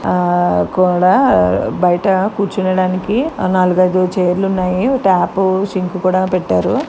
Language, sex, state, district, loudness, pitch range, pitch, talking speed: Telugu, female, Telangana, Karimnagar, -14 LUFS, 180-190 Hz, 185 Hz, 115 wpm